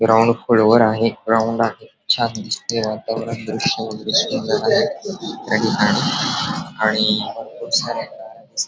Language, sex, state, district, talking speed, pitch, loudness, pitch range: Marathi, male, Maharashtra, Dhule, 120 wpm, 115 Hz, -19 LUFS, 110-115 Hz